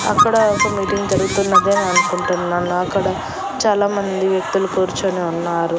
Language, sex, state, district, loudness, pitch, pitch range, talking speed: Telugu, female, Andhra Pradesh, Annamaya, -17 LUFS, 190 Hz, 175-205 Hz, 105 wpm